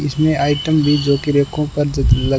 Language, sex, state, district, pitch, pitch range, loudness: Hindi, male, Rajasthan, Bikaner, 145 Hz, 140-150 Hz, -16 LUFS